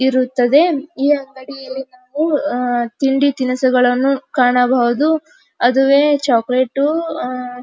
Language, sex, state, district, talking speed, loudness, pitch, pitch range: Kannada, female, Karnataka, Dharwad, 95 wpm, -16 LUFS, 265 Hz, 250-285 Hz